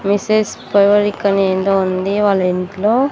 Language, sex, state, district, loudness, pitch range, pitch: Telugu, female, Andhra Pradesh, Sri Satya Sai, -15 LUFS, 190-205 Hz, 200 Hz